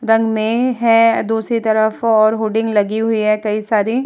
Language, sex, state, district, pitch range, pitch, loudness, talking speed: Hindi, female, Bihar, Vaishali, 215-230 Hz, 220 Hz, -15 LUFS, 190 wpm